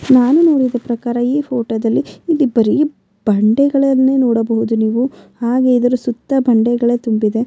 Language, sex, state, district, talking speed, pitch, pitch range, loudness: Kannada, female, Karnataka, Bellary, 130 wpm, 245 Hz, 225-265 Hz, -15 LUFS